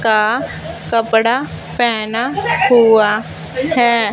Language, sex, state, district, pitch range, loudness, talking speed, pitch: Hindi, female, Punjab, Fazilka, 220-240 Hz, -14 LUFS, 70 wpm, 230 Hz